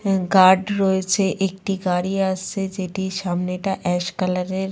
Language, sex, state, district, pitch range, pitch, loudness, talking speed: Bengali, female, West Bengal, Purulia, 180-195 Hz, 190 Hz, -21 LUFS, 150 wpm